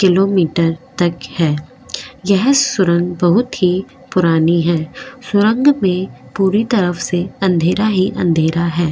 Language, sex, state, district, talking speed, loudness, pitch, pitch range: Hindi, female, Goa, North and South Goa, 120 wpm, -15 LUFS, 180 Hz, 170-200 Hz